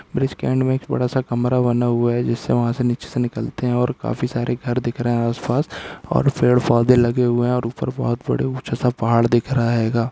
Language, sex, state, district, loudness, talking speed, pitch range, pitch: Hindi, male, Uttarakhand, Uttarkashi, -20 LUFS, 260 wpm, 120-125 Hz, 120 Hz